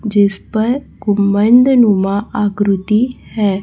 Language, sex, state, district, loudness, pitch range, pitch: Hindi, female, Chhattisgarh, Raipur, -14 LUFS, 200-230 Hz, 210 Hz